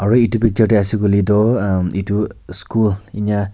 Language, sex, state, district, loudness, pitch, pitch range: Nagamese, male, Nagaland, Kohima, -16 LUFS, 105 Hz, 100-110 Hz